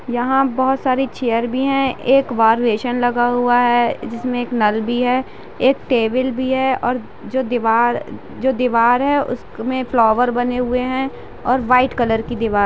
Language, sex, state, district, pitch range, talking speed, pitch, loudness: Hindi, female, Bihar, East Champaran, 235-260 Hz, 185 wpm, 245 Hz, -17 LUFS